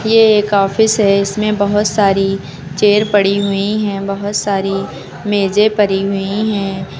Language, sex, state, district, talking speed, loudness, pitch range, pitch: Hindi, female, Uttar Pradesh, Lucknow, 145 wpm, -14 LUFS, 195-210 Hz, 200 Hz